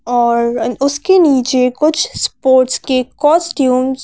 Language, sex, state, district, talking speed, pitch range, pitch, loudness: Hindi, female, Madhya Pradesh, Bhopal, 120 wpm, 250-290 Hz, 260 Hz, -13 LUFS